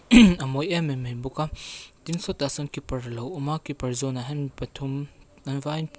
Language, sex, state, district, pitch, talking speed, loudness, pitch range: Mizo, female, Mizoram, Aizawl, 140 Hz, 210 wpm, -26 LUFS, 130-155 Hz